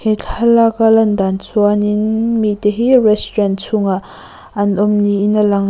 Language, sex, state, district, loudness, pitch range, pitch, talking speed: Mizo, female, Mizoram, Aizawl, -14 LUFS, 205-225 Hz, 210 Hz, 160 wpm